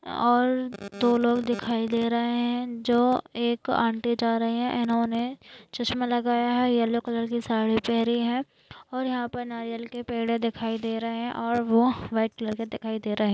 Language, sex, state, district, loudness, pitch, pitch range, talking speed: Hindi, female, Maharashtra, Nagpur, -26 LUFS, 235 Hz, 230-240 Hz, 185 wpm